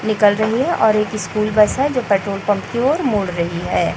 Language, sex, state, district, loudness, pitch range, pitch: Hindi, female, Chhattisgarh, Raipur, -17 LUFS, 205-235 Hz, 210 Hz